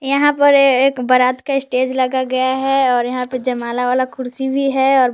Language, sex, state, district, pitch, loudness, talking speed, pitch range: Hindi, female, Jharkhand, Palamu, 260 Hz, -16 LUFS, 210 wpm, 255-270 Hz